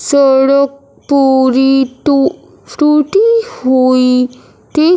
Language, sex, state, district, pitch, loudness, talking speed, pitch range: Hindi, male, Punjab, Fazilka, 275 Hz, -11 LUFS, 75 wpm, 260-300 Hz